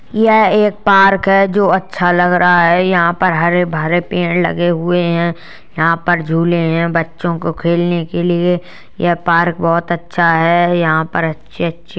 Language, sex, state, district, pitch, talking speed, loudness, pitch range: Hindi, female, Uttar Pradesh, Jalaun, 175 Hz, 175 wpm, -13 LUFS, 170-180 Hz